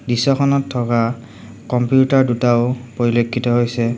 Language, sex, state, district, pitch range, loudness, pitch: Assamese, male, Assam, Sonitpur, 120-125 Hz, -17 LUFS, 120 Hz